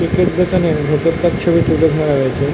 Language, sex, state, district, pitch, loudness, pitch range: Bengali, male, West Bengal, North 24 Parganas, 165 Hz, -15 LUFS, 150-175 Hz